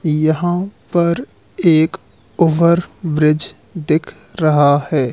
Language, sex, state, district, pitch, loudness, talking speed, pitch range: Hindi, male, Madhya Pradesh, Katni, 160 Hz, -16 LUFS, 95 wpm, 150-175 Hz